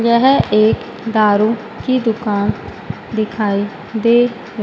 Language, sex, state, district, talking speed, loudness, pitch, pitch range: Hindi, female, Madhya Pradesh, Dhar, 90 wpm, -16 LUFS, 220 Hz, 210-235 Hz